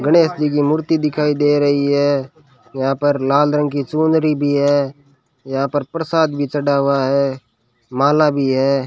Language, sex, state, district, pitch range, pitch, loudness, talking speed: Hindi, male, Rajasthan, Bikaner, 135-150 Hz, 145 Hz, -17 LUFS, 175 wpm